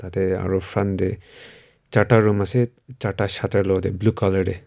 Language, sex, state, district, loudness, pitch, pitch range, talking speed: Nagamese, male, Nagaland, Kohima, -21 LUFS, 100 Hz, 95-110 Hz, 180 wpm